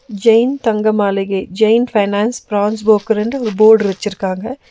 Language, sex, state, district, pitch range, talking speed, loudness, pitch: Tamil, female, Tamil Nadu, Nilgiris, 205-225 Hz, 125 wpm, -14 LUFS, 215 Hz